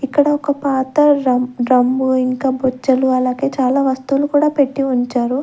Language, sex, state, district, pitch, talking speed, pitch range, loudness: Telugu, female, Andhra Pradesh, Sri Satya Sai, 265 Hz, 135 wpm, 255-275 Hz, -16 LUFS